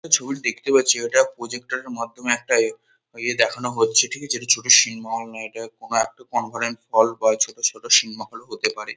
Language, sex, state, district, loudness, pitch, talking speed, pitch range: Bengali, male, West Bengal, Kolkata, -20 LUFS, 125 Hz, 215 wpm, 115-165 Hz